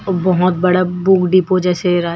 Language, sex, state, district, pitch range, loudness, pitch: Hindi, female, Chhattisgarh, Raipur, 180-185 Hz, -14 LUFS, 180 Hz